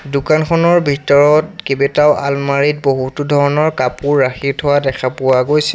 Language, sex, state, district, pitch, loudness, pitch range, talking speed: Assamese, male, Assam, Sonitpur, 145 Hz, -14 LUFS, 140-150 Hz, 135 wpm